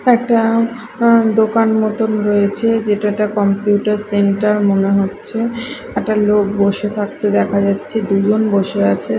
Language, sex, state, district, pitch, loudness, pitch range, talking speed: Bengali, female, Odisha, Khordha, 210 Hz, -15 LUFS, 200-225 Hz, 125 wpm